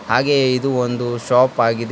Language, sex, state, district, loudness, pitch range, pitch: Kannada, male, Karnataka, Bidar, -17 LUFS, 120-130 Hz, 125 Hz